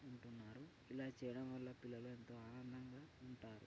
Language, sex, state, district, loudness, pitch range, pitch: Telugu, male, Telangana, Karimnagar, -54 LUFS, 120-130 Hz, 125 Hz